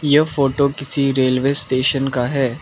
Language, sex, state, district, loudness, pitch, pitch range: Hindi, male, Arunachal Pradesh, Lower Dibang Valley, -17 LUFS, 135 Hz, 130-140 Hz